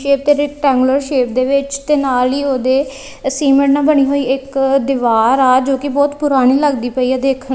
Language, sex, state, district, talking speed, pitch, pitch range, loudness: Punjabi, female, Punjab, Kapurthala, 200 wpm, 275 Hz, 260-280 Hz, -14 LUFS